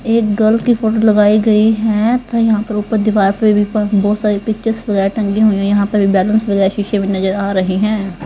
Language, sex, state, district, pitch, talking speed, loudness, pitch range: Hindi, female, Haryana, Rohtak, 210 Hz, 230 wpm, -14 LUFS, 200-220 Hz